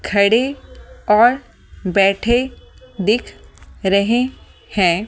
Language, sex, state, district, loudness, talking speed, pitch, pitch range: Hindi, female, Delhi, New Delhi, -17 LUFS, 70 wpm, 210 Hz, 195-240 Hz